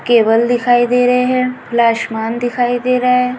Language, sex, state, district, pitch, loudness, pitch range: Hindi, female, Maharashtra, Pune, 245 Hz, -14 LUFS, 235-250 Hz